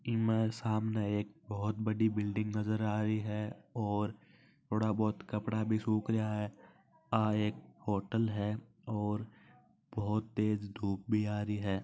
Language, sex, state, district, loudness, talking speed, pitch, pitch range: Marwari, male, Rajasthan, Nagaur, -35 LUFS, 155 wpm, 105 Hz, 105-110 Hz